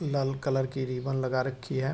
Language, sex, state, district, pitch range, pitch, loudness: Hindi, male, Uttar Pradesh, Hamirpur, 130-135 Hz, 135 Hz, -30 LUFS